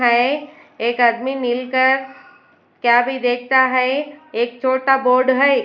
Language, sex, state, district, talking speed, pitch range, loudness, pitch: Hindi, female, Bihar, West Champaran, 115 wpm, 245-270 Hz, -17 LUFS, 260 Hz